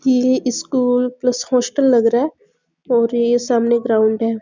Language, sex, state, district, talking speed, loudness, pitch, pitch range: Hindi, female, Chhattisgarh, Bastar, 175 wpm, -17 LUFS, 245 Hz, 235-255 Hz